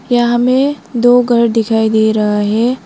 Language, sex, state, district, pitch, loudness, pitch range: Hindi, female, Arunachal Pradesh, Lower Dibang Valley, 240 Hz, -12 LUFS, 220-245 Hz